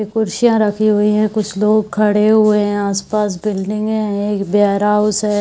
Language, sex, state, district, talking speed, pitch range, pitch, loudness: Hindi, female, Bihar, Saharsa, 165 wpm, 205-215 Hz, 210 Hz, -15 LUFS